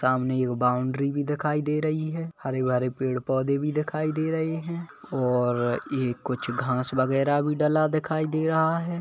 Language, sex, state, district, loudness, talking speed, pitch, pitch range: Hindi, male, Chhattisgarh, Kabirdham, -26 LUFS, 185 wpm, 145 Hz, 130-155 Hz